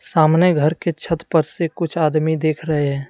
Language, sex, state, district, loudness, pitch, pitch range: Hindi, male, Jharkhand, Deoghar, -18 LUFS, 160 Hz, 155-170 Hz